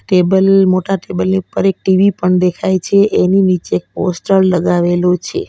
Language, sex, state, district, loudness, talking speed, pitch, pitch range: Gujarati, female, Gujarat, Valsad, -13 LUFS, 175 wpm, 185 Hz, 180-195 Hz